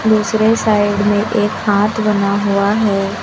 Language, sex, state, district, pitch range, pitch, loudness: Hindi, female, Uttar Pradesh, Lucknow, 205-215 Hz, 210 Hz, -14 LUFS